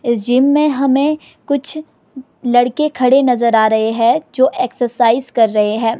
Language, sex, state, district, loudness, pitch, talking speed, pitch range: Hindi, female, Himachal Pradesh, Shimla, -14 LUFS, 250 Hz, 160 wpm, 230-280 Hz